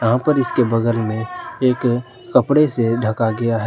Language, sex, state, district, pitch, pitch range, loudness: Hindi, male, Jharkhand, Ranchi, 120 Hz, 115-130 Hz, -18 LUFS